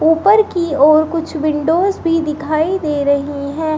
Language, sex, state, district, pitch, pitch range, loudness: Hindi, female, Uttar Pradesh, Shamli, 315 Hz, 300-330 Hz, -15 LUFS